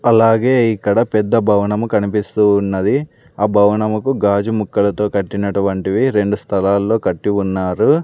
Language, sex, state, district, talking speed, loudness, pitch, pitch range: Telugu, male, Andhra Pradesh, Sri Satya Sai, 110 wpm, -16 LUFS, 105 Hz, 100-115 Hz